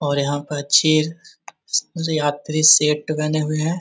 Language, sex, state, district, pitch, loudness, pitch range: Magahi, male, Bihar, Jahanabad, 155 Hz, -18 LUFS, 145-155 Hz